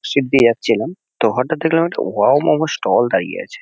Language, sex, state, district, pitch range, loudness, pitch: Bengali, male, West Bengal, Kolkata, 125-165 Hz, -16 LUFS, 160 Hz